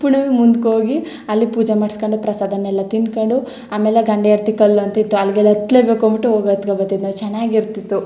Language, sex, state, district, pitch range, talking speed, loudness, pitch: Kannada, female, Karnataka, Chamarajanagar, 210-230 Hz, 180 wpm, -16 LUFS, 215 Hz